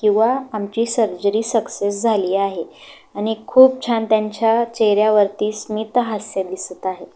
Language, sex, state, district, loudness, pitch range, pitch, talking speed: Marathi, female, Maharashtra, Solapur, -18 LUFS, 205-230 Hz, 215 Hz, 125 wpm